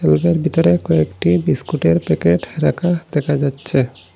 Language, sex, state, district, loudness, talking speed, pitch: Bengali, male, Assam, Hailakandi, -17 LUFS, 115 wpm, 125 Hz